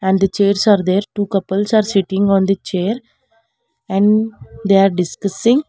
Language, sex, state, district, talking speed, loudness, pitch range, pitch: English, female, Karnataka, Bangalore, 170 wpm, -16 LUFS, 195-215 Hz, 200 Hz